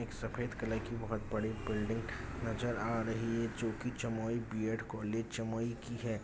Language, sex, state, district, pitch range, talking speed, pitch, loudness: Hindi, male, Bihar, Jamui, 110-115 Hz, 185 wpm, 115 Hz, -38 LUFS